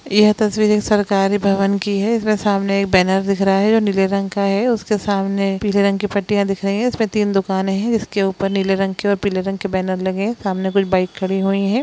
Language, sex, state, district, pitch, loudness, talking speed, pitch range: Hindi, female, Bihar, Jamui, 200 Hz, -18 LUFS, 255 wpm, 195-210 Hz